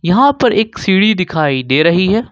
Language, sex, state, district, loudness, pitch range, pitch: Hindi, male, Jharkhand, Ranchi, -12 LUFS, 165-220 Hz, 190 Hz